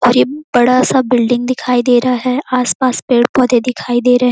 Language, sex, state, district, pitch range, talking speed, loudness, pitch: Hindi, female, Chhattisgarh, Korba, 245-255 Hz, 195 wpm, -13 LUFS, 250 Hz